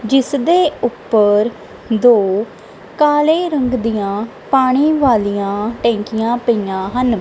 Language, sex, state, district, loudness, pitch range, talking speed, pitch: Punjabi, female, Punjab, Kapurthala, -15 LUFS, 210-270 Hz, 100 wpm, 235 Hz